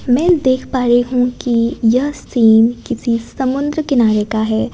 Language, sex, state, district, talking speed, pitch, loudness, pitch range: Hindi, female, Gujarat, Gandhinagar, 165 wpm, 245 Hz, -15 LUFS, 230-260 Hz